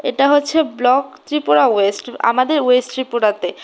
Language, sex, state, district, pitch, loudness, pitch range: Bengali, female, Tripura, West Tripura, 255 Hz, -16 LUFS, 220-290 Hz